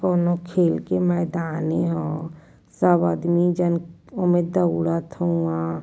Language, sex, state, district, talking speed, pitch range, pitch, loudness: Hindi, female, Uttar Pradesh, Varanasi, 115 wpm, 160-175 Hz, 170 Hz, -22 LUFS